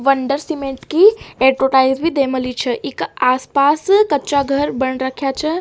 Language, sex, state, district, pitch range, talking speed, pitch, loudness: Rajasthani, female, Rajasthan, Nagaur, 260-295 Hz, 150 wpm, 275 Hz, -16 LUFS